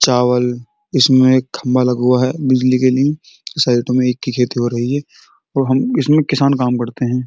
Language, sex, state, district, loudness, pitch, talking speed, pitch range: Hindi, male, Uttar Pradesh, Muzaffarnagar, -15 LUFS, 130 Hz, 130 wpm, 125-135 Hz